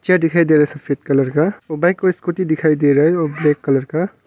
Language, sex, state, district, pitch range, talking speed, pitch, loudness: Hindi, male, Arunachal Pradesh, Longding, 145-175 Hz, 250 wpm, 155 Hz, -16 LUFS